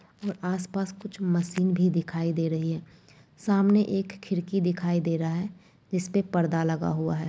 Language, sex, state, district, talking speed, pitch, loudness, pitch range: Angika, female, Bihar, Madhepura, 180 wpm, 180 Hz, -27 LUFS, 165-195 Hz